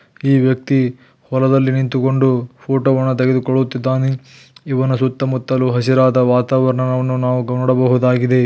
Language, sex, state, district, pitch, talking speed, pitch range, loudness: Kannada, male, Karnataka, Belgaum, 130 Hz, 90 wpm, 125-130 Hz, -16 LUFS